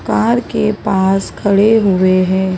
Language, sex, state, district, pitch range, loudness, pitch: Hindi, female, Maharashtra, Mumbai Suburban, 190-215 Hz, -13 LUFS, 195 Hz